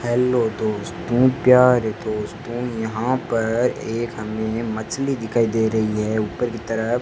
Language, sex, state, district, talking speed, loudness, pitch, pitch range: Hindi, male, Rajasthan, Bikaner, 145 wpm, -21 LUFS, 115 Hz, 110-120 Hz